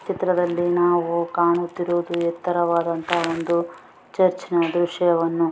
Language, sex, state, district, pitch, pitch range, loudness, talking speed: Kannada, female, Karnataka, Mysore, 175 Hz, 170-175 Hz, -21 LUFS, 110 wpm